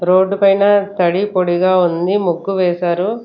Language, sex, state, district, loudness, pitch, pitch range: Telugu, female, Andhra Pradesh, Sri Satya Sai, -15 LUFS, 185 Hz, 175-200 Hz